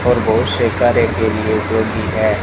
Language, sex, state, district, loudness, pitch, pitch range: Hindi, male, Rajasthan, Bikaner, -16 LUFS, 110 Hz, 110-115 Hz